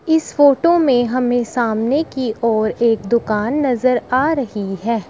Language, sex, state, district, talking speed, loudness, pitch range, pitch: Hindi, male, Uttar Pradesh, Shamli, 155 wpm, -17 LUFS, 225-280 Hz, 245 Hz